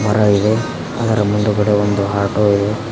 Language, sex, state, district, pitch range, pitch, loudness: Kannada, male, Karnataka, Koppal, 100-105 Hz, 105 Hz, -16 LUFS